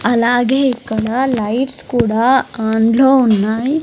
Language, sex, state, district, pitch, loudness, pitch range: Telugu, female, Andhra Pradesh, Sri Satya Sai, 240 Hz, -14 LUFS, 220-265 Hz